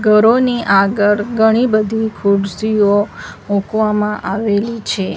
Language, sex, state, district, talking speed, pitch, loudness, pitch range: Gujarati, female, Gujarat, Valsad, 95 wpm, 210 Hz, -15 LUFS, 205-220 Hz